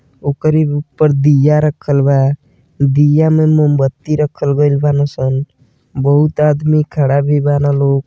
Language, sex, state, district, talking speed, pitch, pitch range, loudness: Bhojpuri, male, Uttar Pradesh, Deoria, 125 wpm, 145 Hz, 140-150 Hz, -13 LUFS